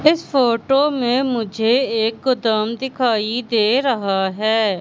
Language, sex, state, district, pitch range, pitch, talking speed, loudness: Hindi, female, Madhya Pradesh, Katni, 220-265 Hz, 235 Hz, 125 wpm, -18 LUFS